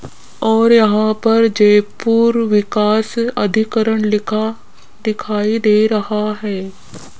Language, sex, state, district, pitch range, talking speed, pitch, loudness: Hindi, female, Rajasthan, Jaipur, 210-225 Hz, 90 wpm, 215 Hz, -15 LUFS